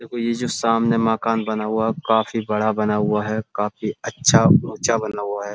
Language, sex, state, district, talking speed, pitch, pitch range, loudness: Hindi, male, Uttar Pradesh, Muzaffarnagar, 225 wpm, 110 Hz, 105-115 Hz, -20 LUFS